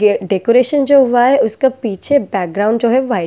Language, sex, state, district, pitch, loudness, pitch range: Hindi, female, Delhi, New Delhi, 240 Hz, -13 LUFS, 210-265 Hz